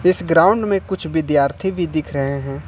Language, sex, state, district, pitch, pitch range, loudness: Hindi, male, Jharkhand, Ranchi, 165 Hz, 145-190 Hz, -18 LUFS